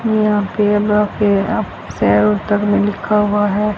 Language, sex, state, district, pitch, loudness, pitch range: Hindi, female, Haryana, Rohtak, 205 Hz, -15 LUFS, 200-210 Hz